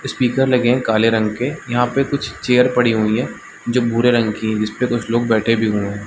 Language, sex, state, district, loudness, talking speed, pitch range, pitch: Hindi, male, Chhattisgarh, Balrampur, -17 LUFS, 255 wpm, 110-125 Hz, 120 Hz